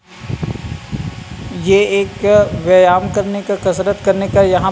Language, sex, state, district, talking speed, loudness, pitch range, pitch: Hindi, male, Chhattisgarh, Rajnandgaon, 125 wpm, -14 LUFS, 185-200 Hz, 195 Hz